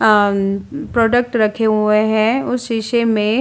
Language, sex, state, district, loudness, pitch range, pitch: Hindi, female, Uttar Pradesh, Jalaun, -16 LUFS, 215-240 Hz, 220 Hz